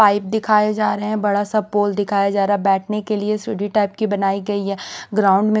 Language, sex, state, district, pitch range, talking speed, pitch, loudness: Hindi, female, Bihar, West Champaran, 200-215 Hz, 245 wpm, 205 Hz, -19 LUFS